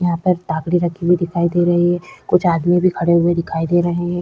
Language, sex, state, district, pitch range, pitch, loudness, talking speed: Hindi, female, Uttar Pradesh, Jyotiba Phule Nagar, 170-175 Hz, 175 Hz, -17 LUFS, 255 wpm